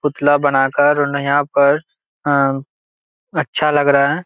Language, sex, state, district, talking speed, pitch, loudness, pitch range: Hindi, male, Jharkhand, Jamtara, 140 wpm, 145 Hz, -16 LUFS, 140-145 Hz